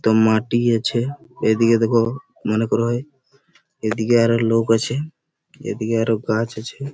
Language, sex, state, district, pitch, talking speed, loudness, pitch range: Bengali, male, West Bengal, Malda, 115 Hz, 145 wpm, -20 LUFS, 110-125 Hz